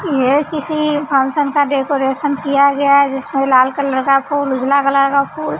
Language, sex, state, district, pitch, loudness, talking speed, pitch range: Hindi, female, Bihar, West Champaran, 280 Hz, -15 LUFS, 195 wpm, 270-290 Hz